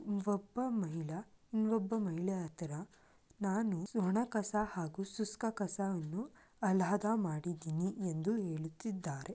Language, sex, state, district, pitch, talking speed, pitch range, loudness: Kannada, female, Karnataka, Mysore, 200 Hz, 105 wpm, 175-215 Hz, -38 LUFS